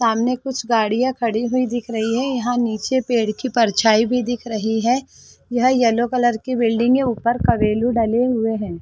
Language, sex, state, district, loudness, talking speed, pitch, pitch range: Hindi, female, Chhattisgarh, Sarguja, -19 LUFS, 195 wpm, 240 Hz, 225-250 Hz